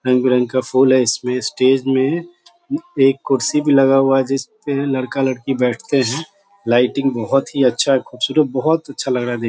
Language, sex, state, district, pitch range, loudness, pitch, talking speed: Hindi, male, Bihar, Sitamarhi, 125-140 Hz, -17 LUFS, 135 Hz, 200 wpm